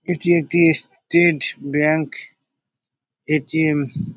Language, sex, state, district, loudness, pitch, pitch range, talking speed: Bengali, male, West Bengal, North 24 Parganas, -19 LUFS, 155 Hz, 150-170 Hz, 100 wpm